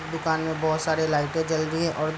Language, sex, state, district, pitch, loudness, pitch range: Hindi, male, Bihar, Gopalganj, 160 Hz, -25 LUFS, 155-160 Hz